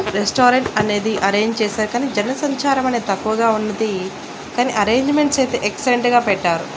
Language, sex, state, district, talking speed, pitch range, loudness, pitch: Telugu, female, Andhra Pradesh, Annamaya, 135 wpm, 205-255 Hz, -18 LUFS, 225 Hz